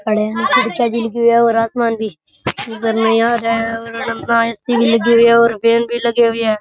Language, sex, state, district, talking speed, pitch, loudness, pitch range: Rajasthani, male, Rajasthan, Nagaur, 125 wpm, 230 Hz, -15 LUFS, 225-235 Hz